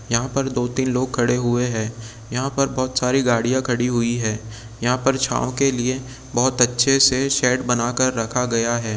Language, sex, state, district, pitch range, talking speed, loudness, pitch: Hindi, male, Bihar, Darbhanga, 120-130 Hz, 185 wpm, -20 LUFS, 125 Hz